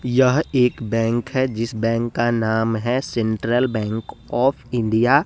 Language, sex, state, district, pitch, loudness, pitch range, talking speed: Hindi, male, Bihar, West Champaran, 120 Hz, -20 LUFS, 115-125 Hz, 160 wpm